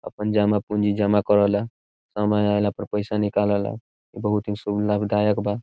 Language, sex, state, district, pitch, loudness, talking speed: Bhojpuri, male, Bihar, Saran, 105 Hz, -22 LUFS, 160 wpm